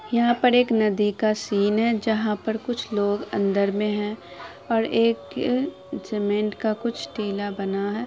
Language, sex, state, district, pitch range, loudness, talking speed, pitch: Hindi, female, Bihar, Araria, 205-230 Hz, -24 LUFS, 165 wpm, 215 Hz